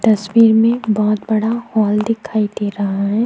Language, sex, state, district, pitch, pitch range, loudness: Hindi, female, Chhattisgarh, Kabirdham, 215 Hz, 210-225 Hz, -16 LUFS